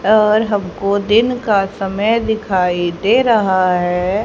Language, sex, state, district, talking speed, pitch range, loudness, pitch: Hindi, female, Haryana, Jhajjar, 125 wpm, 185-215 Hz, -15 LUFS, 200 Hz